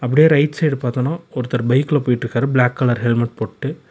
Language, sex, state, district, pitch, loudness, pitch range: Tamil, male, Tamil Nadu, Nilgiris, 125 Hz, -18 LUFS, 120-145 Hz